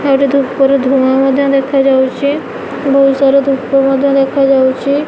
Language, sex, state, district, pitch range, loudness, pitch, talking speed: Odia, female, Odisha, Nuapada, 270-275 Hz, -11 LUFS, 275 Hz, 130 wpm